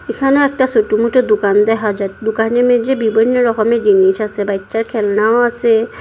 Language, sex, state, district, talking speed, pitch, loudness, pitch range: Bengali, female, Assam, Hailakandi, 170 wpm, 225 Hz, -14 LUFS, 210-240 Hz